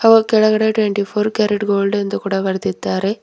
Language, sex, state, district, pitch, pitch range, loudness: Kannada, female, Karnataka, Bidar, 205 Hz, 200-215 Hz, -17 LUFS